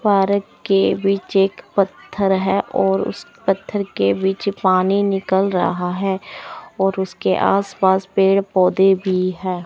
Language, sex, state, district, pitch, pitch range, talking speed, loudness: Hindi, male, Chandigarh, Chandigarh, 195 Hz, 190-195 Hz, 135 wpm, -18 LUFS